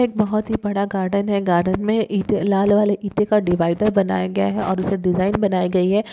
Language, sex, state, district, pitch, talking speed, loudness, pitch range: Hindi, female, Maharashtra, Solapur, 200 Hz, 215 wpm, -19 LUFS, 185-210 Hz